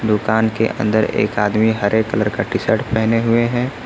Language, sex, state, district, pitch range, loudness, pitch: Hindi, male, Uttar Pradesh, Lucknow, 105-115 Hz, -17 LUFS, 110 Hz